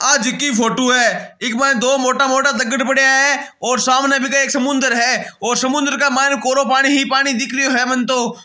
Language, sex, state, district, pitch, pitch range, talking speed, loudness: Marwari, male, Rajasthan, Nagaur, 270 Hz, 255-275 Hz, 220 wpm, -15 LUFS